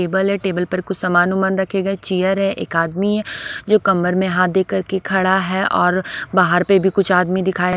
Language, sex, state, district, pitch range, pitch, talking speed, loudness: Hindi, female, Odisha, Sambalpur, 185-195 Hz, 190 Hz, 230 wpm, -17 LUFS